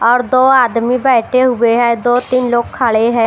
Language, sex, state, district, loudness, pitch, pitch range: Hindi, female, Bihar, Katihar, -12 LUFS, 240 Hz, 235-255 Hz